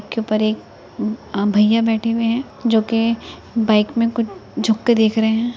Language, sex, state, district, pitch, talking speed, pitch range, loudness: Hindi, female, Uttar Pradesh, Etah, 225 Hz, 185 wpm, 215-230 Hz, -18 LUFS